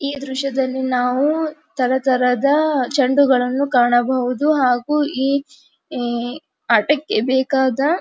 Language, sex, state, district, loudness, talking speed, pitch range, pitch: Kannada, female, Karnataka, Dharwad, -18 LUFS, 80 wpm, 255-295 Hz, 270 Hz